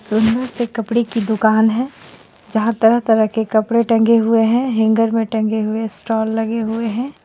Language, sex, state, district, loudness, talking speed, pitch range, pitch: Hindi, female, Jharkhand, Ranchi, -17 LUFS, 175 wpm, 220-230 Hz, 225 Hz